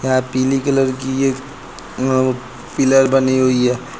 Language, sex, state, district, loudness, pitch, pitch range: Hindi, male, Uttar Pradesh, Lucknow, -16 LUFS, 130 Hz, 130-135 Hz